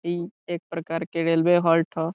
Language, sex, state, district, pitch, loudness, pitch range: Bhojpuri, male, Bihar, Saran, 165 Hz, -24 LUFS, 165-175 Hz